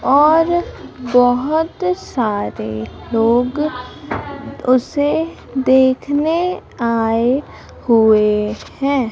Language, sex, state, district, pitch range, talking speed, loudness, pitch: Hindi, female, Madhya Pradesh, Umaria, 230-300 Hz, 60 wpm, -17 LUFS, 255 Hz